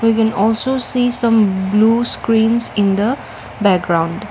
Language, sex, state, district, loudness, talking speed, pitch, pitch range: English, female, Assam, Kamrup Metropolitan, -14 LUFS, 140 wpm, 220 Hz, 200-235 Hz